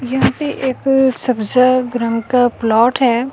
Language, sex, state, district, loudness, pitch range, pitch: Hindi, female, Delhi, New Delhi, -15 LUFS, 235-260 Hz, 250 Hz